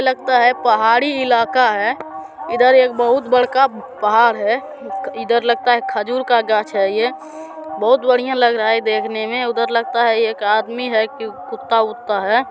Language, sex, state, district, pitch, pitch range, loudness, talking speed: Hindi, male, Bihar, Supaul, 235 Hz, 220-250 Hz, -16 LUFS, 170 wpm